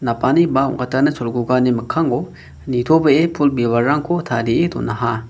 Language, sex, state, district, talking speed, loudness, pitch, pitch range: Garo, male, Meghalaya, West Garo Hills, 115 wpm, -17 LUFS, 125 Hz, 115-145 Hz